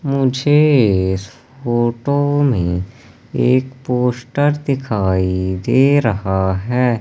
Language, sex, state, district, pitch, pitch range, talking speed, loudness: Hindi, male, Madhya Pradesh, Katni, 125 Hz, 100-135 Hz, 85 wpm, -16 LUFS